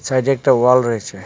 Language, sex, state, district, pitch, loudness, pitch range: Bengali, male, Tripura, West Tripura, 125 Hz, -15 LUFS, 115-130 Hz